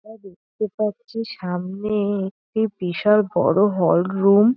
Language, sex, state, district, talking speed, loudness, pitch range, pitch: Bengali, female, West Bengal, North 24 Parganas, 130 wpm, -21 LUFS, 190-215 Hz, 205 Hz